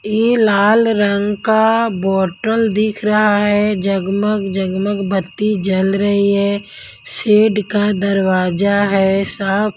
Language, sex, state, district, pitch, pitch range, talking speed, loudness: Hindi, female, Haryana, Jhajjar, 205 Hz, 195-215 Hz, 125 wpm, -15 LUFS